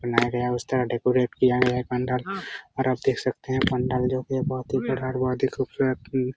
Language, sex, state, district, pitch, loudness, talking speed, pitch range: Hindi, male, Bihar, Araria, 130 Hz, -25 LUFS, 245 wpm, 125-130 Hz